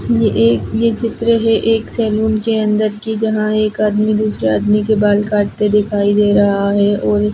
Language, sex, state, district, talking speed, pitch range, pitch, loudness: Hindi, female, Chhattisgarh, Jashpur, 190 wpm, 205-220 Hz, 210 Hz, -15 LUFS